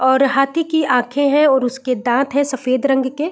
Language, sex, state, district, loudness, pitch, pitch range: Hindi, female, Chhattisgarh, Raigarh, -16 LUFS, 270 Hz, 260-285 Hz